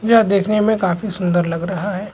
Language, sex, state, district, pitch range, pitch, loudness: Hindi, male, Bihar, Supaul, 180-215 Hz, 200 Hz, -17 LUFS